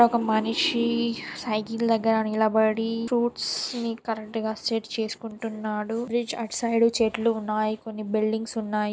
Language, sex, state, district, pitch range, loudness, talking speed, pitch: Telugu, female, Telangana, Nalgonda, 220-230 Hz, -26 LUFS, 130 wpm, 225 Hz